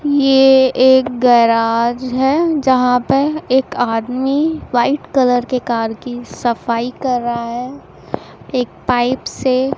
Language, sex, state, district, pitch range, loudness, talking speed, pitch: Hindi, female, Chhattisgarh, Raipur, 240-265 Hz, -15 LUFS, 125 wpm, 255 Hz